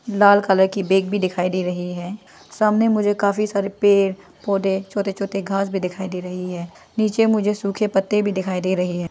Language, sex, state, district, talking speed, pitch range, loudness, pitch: Hindi, female, Arunachal Pradesh, Lower Dibang Valley, 210 wpm, 185-205 Hz, -20 LUFS, 195 Hz